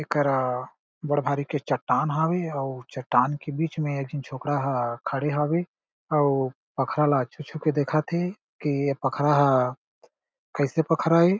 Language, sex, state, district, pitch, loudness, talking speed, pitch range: Chhattisgarhi, male, Chhattisgarh, Jashpur, 145 Hz, -25 LUFS, 165 wpm, 135-155 Hz